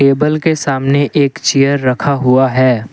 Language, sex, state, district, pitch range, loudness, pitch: Hindi, male, Assam, Kamrup Metropolitan, 130-145 Hz, -12 LUFS, 140 Hz